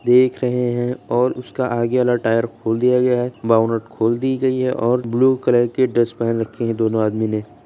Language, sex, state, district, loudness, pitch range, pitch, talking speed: Hindi, male, Uttar Pradesh, Jyotiba Phule Nagar, -19 LUFS, 115-125 Hz, 120 Hz, 220 wpm